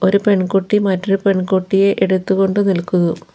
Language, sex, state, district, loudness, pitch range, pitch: Malayalam, female, Kerala, Kollam, -16 LUFS, 185-200 Hz, 195 Hz